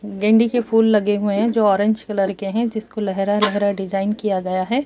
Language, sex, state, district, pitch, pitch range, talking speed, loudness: Hindi, female, Chhattisgarh, Kabirdham, 210 Hz, 200-220 Hz, 235 wpm, -19 LUFS